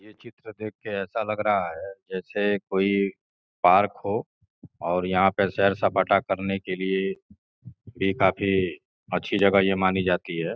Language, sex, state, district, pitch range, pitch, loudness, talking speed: Hindi, male, Uttar Pradesh, Gorakhpur, 95-100 Hz, 95 Hz, -24 LUFS, 155 wpm